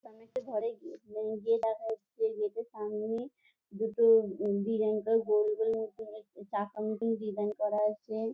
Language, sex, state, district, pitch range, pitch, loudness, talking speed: Bengali, female, West Bengal, Jhargram, 210-225 Hz, 220 Hz, -32 LUFS, 150 wpm